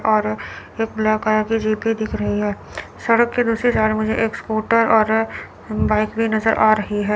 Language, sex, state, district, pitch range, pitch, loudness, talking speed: Hindi, female, Chandigarh, Chandigarh, 210-225 Hz, 220 Hz, -19 LUFS, 200 wpm